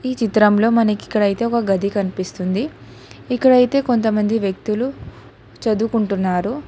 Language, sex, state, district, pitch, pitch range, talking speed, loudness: Telugu, female, Telangana, Hyderabad, 220 Hz, 200-235 Hz, 90 wpm, -18 LUFS